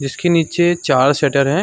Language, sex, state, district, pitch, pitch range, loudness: Hindi, male, Chhattisgarh, Sarguja, 145 Hz, 140-175 Hz, -15 LUFS